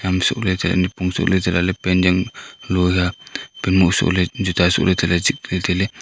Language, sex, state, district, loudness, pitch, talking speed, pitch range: Wancho, male, Arunachal Pradesh, Longding, -18 LUFS, 90 Hz, 270 wpm, 90-95 Hz